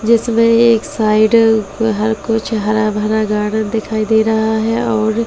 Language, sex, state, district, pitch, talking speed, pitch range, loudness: Hindi, female, Delhi, New Delhi, 220 Hz, 170 wpm, 215-225 Hz, -14 LUFS